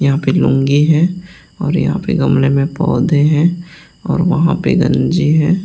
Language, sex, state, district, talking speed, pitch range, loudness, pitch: Hindi, male, Delhi, New Delhi, 170 wpm, 145-175 Hz, -14 LUFS, 160 Hz